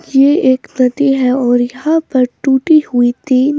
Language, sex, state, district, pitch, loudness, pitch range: Hindi, female, Bihar, West Champaran, 265 Hz, -12 LUFS, 255-285 Hz